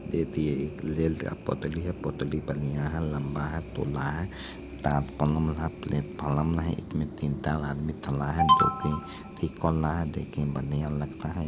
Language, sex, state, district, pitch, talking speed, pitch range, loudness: Maithili, male, Bihar, Supaul, 75 Hz, 140 wpm, 70-80 Hz, -29 LUFS